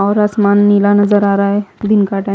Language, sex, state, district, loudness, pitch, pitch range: Hindi, female, Maharashtra, Mumbai Suburban, -12 LUFS, 205 Hz, 200-205 Hz